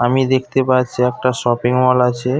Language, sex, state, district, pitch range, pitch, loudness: Bengali, male, West Bengal, Paschim Medinipur, 125-130 Hz, 125 Hz, -16 LUFS